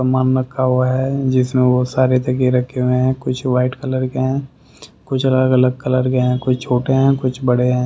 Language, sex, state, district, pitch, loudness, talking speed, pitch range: Hindi, male, Haryana, Rohtak, 130 Hz, -17 LUFS, 205 wpm, 125-130 Hz